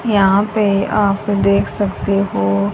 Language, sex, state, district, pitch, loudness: Hindi, female, Haryana, Jhajjar, 195 Hz, -16 LUFS